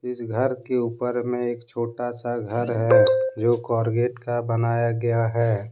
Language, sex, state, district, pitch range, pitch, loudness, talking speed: Hindi, male, Jharkhand, Deoghar, 115-125 Hz, 120 Hz, -23 LUFS, 170 wpm